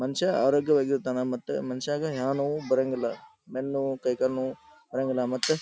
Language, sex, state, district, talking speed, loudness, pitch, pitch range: Kannada, male, Karnataka, Dharwad, 140 wpm, -28 LUFS, 135 Hz, 130-145 Hz